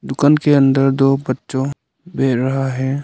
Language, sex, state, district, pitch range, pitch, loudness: Hindi, male, Arunachal Pradesh, Lower Dibang Valley, 135-140 Hz, 135 Hz, -16 LUFS